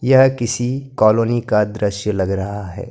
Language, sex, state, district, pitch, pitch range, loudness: Hindi, male, Maharashtra, Gondia, 110 Hz, 105-120 Hz, -18 LUFS